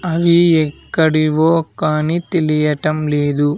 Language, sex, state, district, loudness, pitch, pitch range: Telugu, male, Andhra Pradesh, Sri Satya Sai, -15 LUFS, 155 Hz, 150-165 Hz